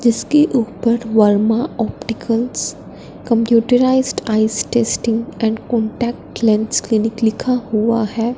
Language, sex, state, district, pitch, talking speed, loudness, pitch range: Hindi, female, Punjab, Fazilka, 230 Hz, 100 wpm, -17 LUFS, 220-240 Hz